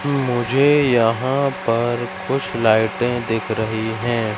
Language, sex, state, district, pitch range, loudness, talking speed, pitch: Hindi, male, Madhya Pradesh, Katni, 115-135 Hz, -19 LUFS, 110 wpm, 120 Hz